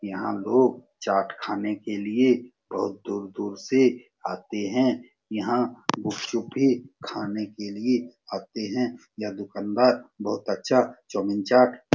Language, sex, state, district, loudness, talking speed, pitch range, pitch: Hindi, male, Bihar, Saran, -26 LUFS, 125 wpm, 100-125 Hz, 115 Hz